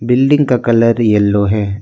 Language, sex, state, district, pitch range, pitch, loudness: Hindi, male, Arunachal Pradesh, Lower Dibang Valley, 105-125 Hz, 115 Hz, -12 LUFS